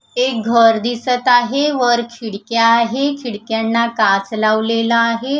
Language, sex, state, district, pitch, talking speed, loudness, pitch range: Marathi, female, Maharashtra, Gondia, 235 Hz, 120 wpm, -15 LUFS, 225-245 Hz